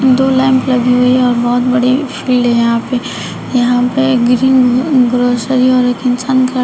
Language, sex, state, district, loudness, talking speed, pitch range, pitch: Hindi, female, Uttar Pradesh, Shamli, -12 LUFS, 190 wpm, 245-260 Hz, 250 Hz